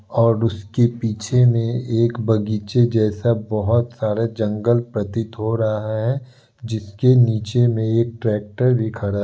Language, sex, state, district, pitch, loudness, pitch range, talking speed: Hindi, male, Bihar, Kishanganj, 115 Hz, -19 LUFS, 110-120 Hz, 135 wpm